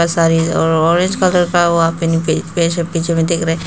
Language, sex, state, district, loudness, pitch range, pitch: Hindi, female, Arunachal Pradesh, Papum Pare, -14 LUFS, 165-170 Hz, 165 Hz